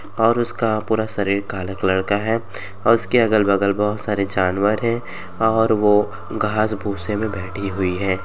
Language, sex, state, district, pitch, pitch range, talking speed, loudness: Bhojpuri, male, Uttar Pradesh, Gorakhpur, 105 Hz, 100-110 Hz, 175 wpm, -19 LUFS